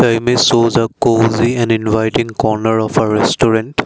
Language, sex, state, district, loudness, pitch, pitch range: English, male, Assam, Kamrup Metropolitan, -14 LUFS, 115 Hz, 110-115 Hz